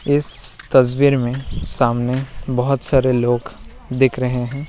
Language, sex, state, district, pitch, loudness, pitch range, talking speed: Hindi, male, Bihar, Purnia, 130 Hz, -16 LUFS, 120-135 Hz, 130 wpm